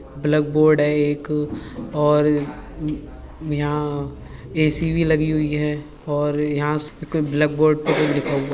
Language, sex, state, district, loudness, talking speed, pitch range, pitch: Hindi, male, Uttar Pradesh, Budaun, -20 LUFS, 140 wpm, 145-155 Hz, 150 Hz